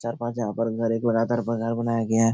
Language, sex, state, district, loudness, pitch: Hindi, male, Bihar, Supaul, -25 LUFS, 115 Hz